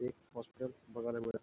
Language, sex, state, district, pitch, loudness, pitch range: Marathi, male, Maharashtra, Nagpur, 120 Hz, -43 LUFS, 115-125 Hz